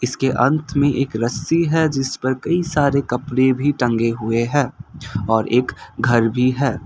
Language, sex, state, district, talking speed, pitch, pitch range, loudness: Hindi, male, Assam, Kamrup Metropolitan, 165 wpm, 130 Hz, 120-145 Hz, -19 LUFS